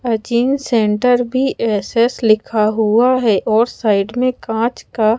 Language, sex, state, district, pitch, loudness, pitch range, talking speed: Hindi, female, Odisha, Khordha, 230 Hz, -16 LUFS, 215-245 Hz, 140 wpm